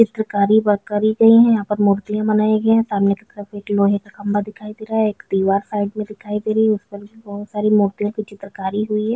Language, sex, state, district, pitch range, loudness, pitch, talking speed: Hindi, female, Chhattisgarh, Bilaspur, 205-215 Hz, -18 LUFS, 210 Hz, 255 wpm